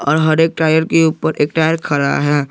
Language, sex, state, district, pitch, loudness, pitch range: Hindi, male, Jharkhand, Garhwa, 160 Hz, -14 LUFS, 145-160 Hz